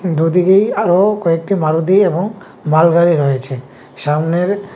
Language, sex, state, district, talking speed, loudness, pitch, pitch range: Bengali, male, Tripura, West Tripura, 100 wpm, -14 LUFS, 170 Hz, 155-195 Hz